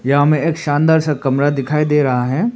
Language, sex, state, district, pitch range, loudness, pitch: Hindi, male, Arunachal Pradesh, Papum Pare, 140-155 Hz, -15 LUFS, 145 Hz